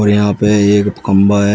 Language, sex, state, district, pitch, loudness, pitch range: Hindi, male, Uttar Pradesh, Shamli, 105 Hz, -12 LUFS, 100-105 Hz